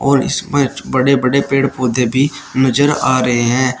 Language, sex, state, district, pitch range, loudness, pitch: Hindi, male, Uttar Pradesh, Shamli, 130-140 Hz, -14 LUFS, 130 Hz